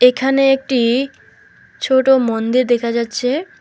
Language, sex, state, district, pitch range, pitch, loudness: Bengali, female, West Bengal, Alipurduar, 240-280 Hz, 265 Hz, -16 LUFS